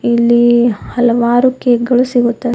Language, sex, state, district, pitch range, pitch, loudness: Kannada, female, Karnataka, Bidar, 235-245 Hz, 240 Hz, -12 LUFS